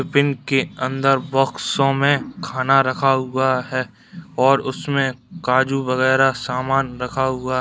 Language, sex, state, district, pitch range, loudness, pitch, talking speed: Hindi, male, Bihar, Darbhanga, 130-135 Hz, -19 LUFS, 135 Hz, 135 wpm